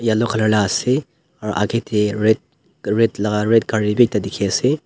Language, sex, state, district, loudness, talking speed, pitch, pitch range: Nagamese, male, Nagaland, Dimapur, -18 LUFS, 195 wpm, 110 Hz, 105-125 Hz